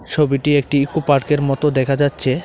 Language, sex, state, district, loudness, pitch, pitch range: Bengali, male, Tripura, Dhalai, -17 LUFS, 145 Hz, 140-150 Hz